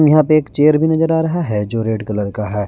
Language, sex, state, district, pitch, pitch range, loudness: Hindi, male, Jharkhand, Garhwa, 145 Hz, 105-155 Hz, -16 LUFS